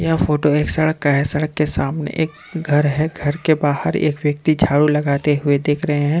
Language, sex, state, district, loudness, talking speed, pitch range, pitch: Hindi, male, Jharkhand, Deoghar, -18 LUFS, 225 wpm, 145-155 Hz, 150 Hz